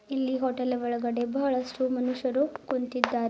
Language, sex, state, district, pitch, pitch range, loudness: Kannada, female, Karnataka, Bidar, 255 Hz, 250-260 Hz, -29 LUFS